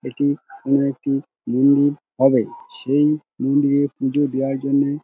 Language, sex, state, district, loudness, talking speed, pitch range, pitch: Bengali, male, West Bengal, Dakshin Dinajpur, -20 LUFS, 120 wpm, 135-145 Hz, 140 Hz